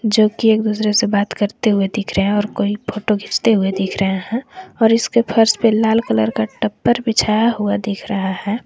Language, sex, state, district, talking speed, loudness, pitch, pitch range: Hindi, female, Jharkhand, Garhwa, 215 wpm, -17 LUFS, 210 Hz, 200-225 Hz